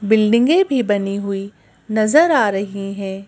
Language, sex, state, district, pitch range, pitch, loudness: Hindi, female, Madhya Pradesh, Bhopal, 195-230 Hz, 205 Hz, -17 LUFS